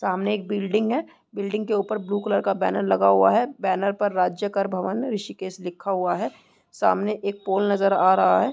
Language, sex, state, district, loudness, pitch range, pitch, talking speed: Hindi, female, Uttarakhand, Tehri Garhwal, -23 LUFS, 185-210 Hz, 200 Hz, 210 wpm